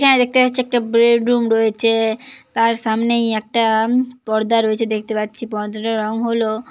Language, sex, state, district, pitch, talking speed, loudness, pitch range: Bengali, female, West Bengal, Paschim Medinipur, 230 Hz, 160 wpm, -17 LUFS, 220-235 Hz